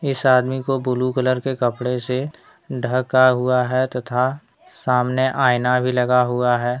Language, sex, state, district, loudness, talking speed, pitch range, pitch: Hindi, male, Jharkhand, Deoghar, -19 LUFS, 160 wpm, 125-130 Hz, 125 Hz